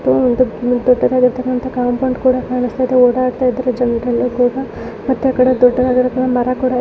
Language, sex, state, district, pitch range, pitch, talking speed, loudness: Kannada, female, Karnataka, Raichur, 245-255 Hz, 250 Hz, 105 wpm, -15 LUFS